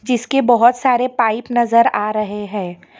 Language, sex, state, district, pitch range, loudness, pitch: Hindi, female, Karnataka, Bangalore, 215-245 Hz, -16 LUFS, 235 Hz